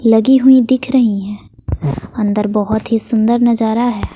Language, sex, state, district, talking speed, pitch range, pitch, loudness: Hindi, female, Bihar, West Champaran, 160 wpm, 215-245 Hz, 225 Hz, -13 LUFS